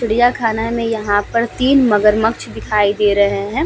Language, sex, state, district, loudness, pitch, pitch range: Hindi, female, Bihar, Vaishali, -15 LUFS, 225 Hz, 205-235 Hz